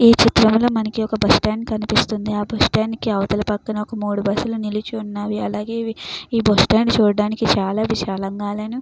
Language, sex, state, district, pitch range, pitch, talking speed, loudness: Telugu, female, Andhra Pradesh, Chittoor, 210-225 Hz, 215 Hz, 130 wpm, -19 LUFS